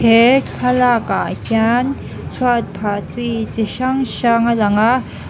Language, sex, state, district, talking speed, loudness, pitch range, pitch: Mizo, female, Mizoram, Aizawl, 135 wpm, -16 LUFS, 220-250 Hz, 235 Hz